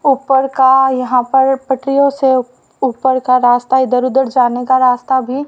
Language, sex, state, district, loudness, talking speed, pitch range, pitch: Hindi, female, Haryana, Charkhi Dadri, -13 LUFS, 165 wpm, 250-265 Hz, 260 Hz